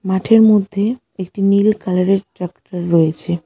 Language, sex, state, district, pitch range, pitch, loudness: Bengali, female, West Bengal, Alipurduar, 180-205 Hz, 190 Hz, -15 LUFS